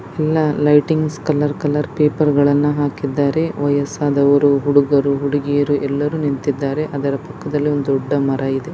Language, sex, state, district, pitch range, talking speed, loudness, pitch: Kannada, female, Karnataka, Dakshina Kannada, 140-150 Hz, 125 wpm, -17 LUFS, 145 Hz